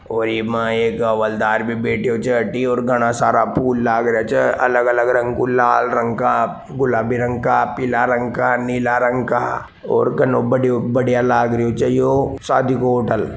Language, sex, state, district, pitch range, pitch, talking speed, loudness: Marwari, male, Rajasthan, Nagaur, 115-125 Hz, 120 Hz, 190 wpm, -17 LUFS